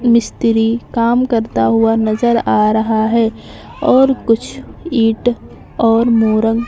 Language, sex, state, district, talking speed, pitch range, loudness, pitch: Hindi, female, Maharashtra, Mumbai Suburban, 125 wpm, 225-235 Hz, -14 LUFS, 230 Hz